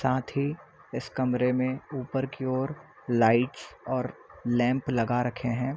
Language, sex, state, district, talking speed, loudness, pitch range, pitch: Hindi, male, Chhattisgarh, Bilaspur, 145 wpm, -28 LUFS, 120-135 Hz, 130 Hz